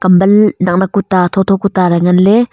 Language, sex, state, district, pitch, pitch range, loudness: Wancho, female, Arunachal Pradesh, Longding, 190 Hz, 180-200 Hz, -11 LUFS